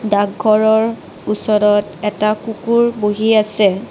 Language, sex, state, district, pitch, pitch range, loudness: Assamese, female, Assam, Kamrup Metropolitan, 210 Hz, 210-220 Hz, -15 LUFS